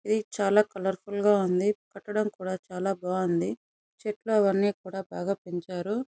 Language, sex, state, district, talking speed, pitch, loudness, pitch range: Telugu, female, Andhra Pradesh, Chittoor, 130 wpm, 195 Hz, -28 LUFS, 185-210 Hz